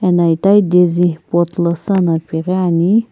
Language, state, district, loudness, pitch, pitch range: Sumi, Nagaland, Kohima, -14 LUFS, 175 Hz, 170-185 Hz